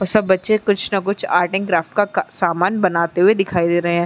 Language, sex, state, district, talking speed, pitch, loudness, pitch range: Hindi, female, Uttar Pradesh, Muzaffarnagar, 235 wpm, 190 Hz, -17 LUFS, 175-200 Hz